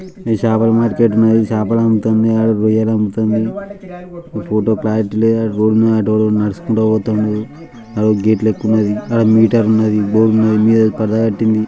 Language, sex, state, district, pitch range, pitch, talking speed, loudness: Telugu, male, Telangana, Nalgonda, 110-115 Hz, 110 Hz, 150 wpm, -14 LUFS